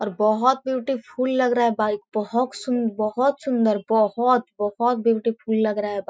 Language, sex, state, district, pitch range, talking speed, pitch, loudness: Hindi, female, Chhattisgarh, Korba, 215-250 Hz, 205 wpm, 230 Hz, -22 LUFS